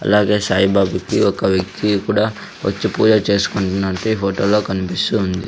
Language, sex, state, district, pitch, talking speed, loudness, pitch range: Telugu, male, Andhra Pradesh, Sri Satya Sai, 100 Hz, 140 wpm, -17 LUFS, 95-105 Hz